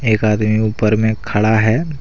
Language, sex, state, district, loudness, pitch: Hindi, male, Jharkhand, Deoghar, -15 LUFS, 110 Hz